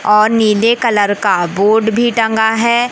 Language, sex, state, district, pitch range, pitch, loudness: Hindi, male, Madhya Pradesh, Katni, 210-230 Hz, 220 Hz, -12 LUFS